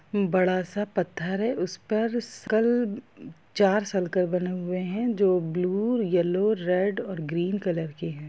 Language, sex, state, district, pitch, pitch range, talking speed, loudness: Hindi, female, Bihar, Gopalganj, 190 Hz, 180-215 Hz, 130 wpm, -26 LUFS